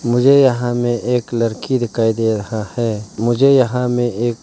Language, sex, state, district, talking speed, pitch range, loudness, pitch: Hindi, male, Arunachal Pradesh, Lower Dibang Valley, 190 wpm, 115-125 Hz, -16 LUFS, 120 Hz